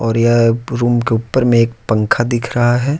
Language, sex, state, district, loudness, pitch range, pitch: Hindi, male, Jharkhand, Deoghar, -15 LUFS, 115-120 Hz, 120 Hz